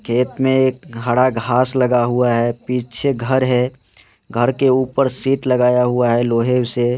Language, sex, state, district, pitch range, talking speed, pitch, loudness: Hindi, male, Rajasthan, Nagaur, 120-130 Hz, 165 wpm, 125 Hz, -17 LUFS